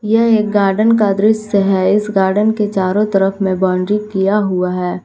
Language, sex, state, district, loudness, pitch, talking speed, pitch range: Hindi, female, Jharkhand, Palamu, -14 LUFS, 200 Hz, 190 wpm, 190-210 Hz